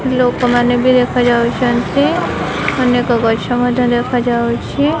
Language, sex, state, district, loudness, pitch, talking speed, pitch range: Odia, male, Odisha, Khordha, -14 LUFS, 245 Hz, 95 wpm, 240-250 Hz